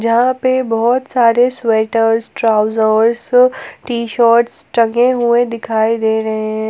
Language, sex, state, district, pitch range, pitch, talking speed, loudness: Hindi, female, Jharkhand, Palamu, 225-245 Hz, 230 Hz, 125 wpm, -14 LUFS